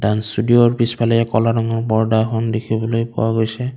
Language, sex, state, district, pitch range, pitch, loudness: Assamese, male, Assam, Kamrup Metropolitan, 110-115 Hz, 115 Hz, -17 LUFS